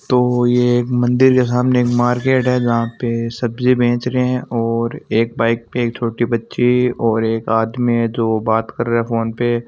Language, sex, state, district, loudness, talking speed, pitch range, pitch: Marwari, male, Rajasthan, Nagaur, -17 LUFS, 190 wpm, 115-125 Hz, 120 Hz